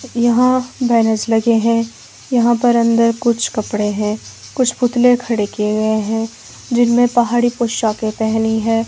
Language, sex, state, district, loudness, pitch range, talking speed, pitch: Hindi, female, Himachal Pradesh, Shimla, -16 LUFS, 220-240 Hz, 140 wpm, 230 Hz